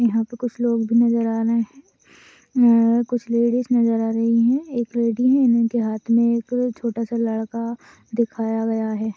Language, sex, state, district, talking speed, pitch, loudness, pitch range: Hindi, female, Maharashtra, Aurangabad, 190 wpm, 235 Hz, -20 LUFS, 230-240 Hz